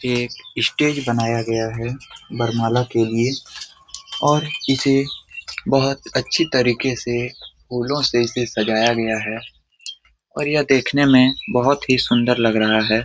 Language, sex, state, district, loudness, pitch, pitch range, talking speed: Hindi, male, Bihar, Jamui, -19 LUFS, 125 Hz, 115-140 Hz, 140 wpm